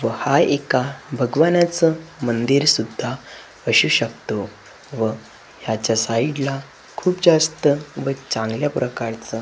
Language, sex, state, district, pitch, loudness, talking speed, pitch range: Marathi, male, Maharashtra, Gondia, 135 Hz, -20 LUFS, 110 wpm, 115-155 Hz